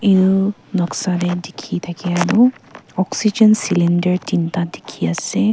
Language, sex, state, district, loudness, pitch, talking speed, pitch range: Nagamese, female, Nagaland, Kohima, -17 LUFS, 180 Hz, 120 wpm, 175-200 Hz